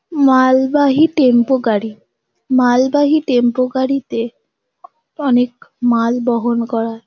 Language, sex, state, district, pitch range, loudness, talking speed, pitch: Bengali, female, West Bengal, Kolkata, 235-275 Hz, -15 LUFS, 95 wpm, 255 Hz